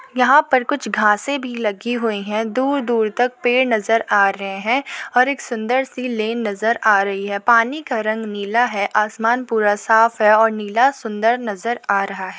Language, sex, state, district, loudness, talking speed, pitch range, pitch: Hindi, female, Uttar Pradesh, Muzaffarnagar, -18 LUFS, 200 wpm, 210-250 Hz, 225 Hz